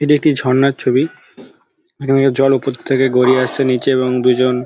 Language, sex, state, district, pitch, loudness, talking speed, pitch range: Bengali, male, West Bengal, Dakshin Dinajpur, 130 Hz, -14 LUFS, 180 wpm, 125-135 Hz